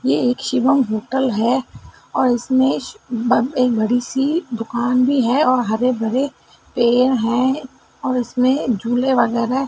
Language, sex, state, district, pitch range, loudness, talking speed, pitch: Hindi, female, Madhya Pradesh, Dhar, 240-265 Hz, -18 LUFS, 140 wpm, 250 Hz